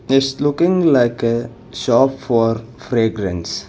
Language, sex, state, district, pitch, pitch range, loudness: English, male, Karnataka, Bangalore, 120 Hz, 115-135 Hz, -17 LUFS